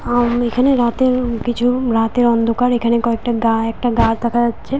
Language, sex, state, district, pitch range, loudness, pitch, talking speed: Bengali, female, West Bengal, Paschim Medinipur, 230-245 Hz, -16 LUFS, 240 Hz, 165 wpm